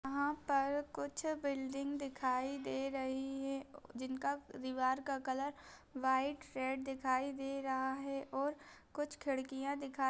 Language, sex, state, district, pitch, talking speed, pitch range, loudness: Hindi, female, Chhattisgarh, Raigarh, 275 Hz, 135 wpm, 265-280 Hz, -40 LUFS